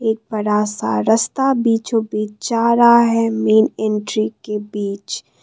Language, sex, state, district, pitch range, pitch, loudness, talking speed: Hindi, female, Assam, Kamrup Metropolitan, 210-230 Hz, 220 Hz, -17 LUFS, 145 wpm